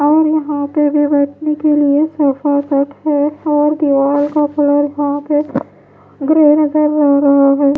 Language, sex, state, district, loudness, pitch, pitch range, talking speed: Hindi, female, Punjab, Pathankot, -13 LUFS, 290 Hz, 285-300 Hz, 140 wpm